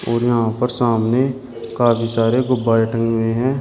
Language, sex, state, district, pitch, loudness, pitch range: Hindi, male, Uttar Pradesh, Shamli, 115 Hz, -18 LUFS, 115-125 Hz